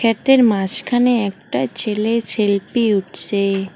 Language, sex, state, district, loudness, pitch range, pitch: Bengali, female, West Bengal, Cooch Behar, -17 LUFS, 200-235 Hz, 215 Hz